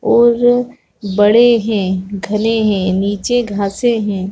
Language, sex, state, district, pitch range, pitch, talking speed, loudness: Hindi, female, Chhattisgarh, Rajnandgaon, 200-235 Hz, 210 Hz, 110 wpm, -14 LUFS